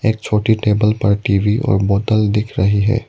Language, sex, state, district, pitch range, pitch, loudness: Hindi, male, Arunachal Pradesh, Lower Dibang Valley, 100-110 Hz, 105 Hz, -16 LUFS